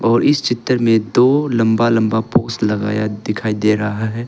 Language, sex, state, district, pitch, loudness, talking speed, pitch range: Hindi, male, Arunachal Pradesh, Longding, 110 Hz, -16 LUFS, 185 wpm, 105-120 Hz